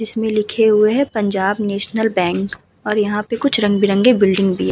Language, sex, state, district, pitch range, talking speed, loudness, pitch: Hindi, female, Uttar Pradesh, Muzaffarnagar, 200-220 Hz, 205 wpm, -16 LUFS, 210 Hz